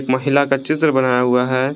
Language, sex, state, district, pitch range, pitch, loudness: Hindi, male, Jharkhand, Garhwa, 130-140 Hz, 130 Hz, -16 LUFS